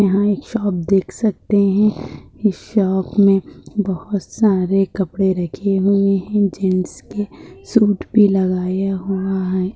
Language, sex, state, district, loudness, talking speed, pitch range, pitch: Hindi, female, Maharashtra, Dhule, -18 LUFS, 135 wpm, 190-205 Hz, 195 Hz